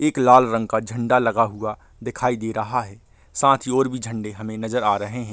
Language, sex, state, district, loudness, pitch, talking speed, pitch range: Hindi, male, Chhattisgarh, Bilaspur, -21 LUFS, 115 Hz, 235 wpm, 110-125 Hz